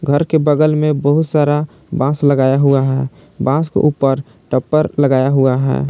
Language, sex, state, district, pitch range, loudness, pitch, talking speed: Hindi, male, Jharkhand, Palamu, 135-150 Hz, -15 LUFS, 145 Hz, 175 wpm